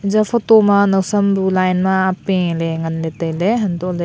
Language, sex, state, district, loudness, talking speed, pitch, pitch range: Wancho, female, Arunachal Pradesh, Longding, -16 LUFS, 210 wpm, 190 Hz, 175-200 Hz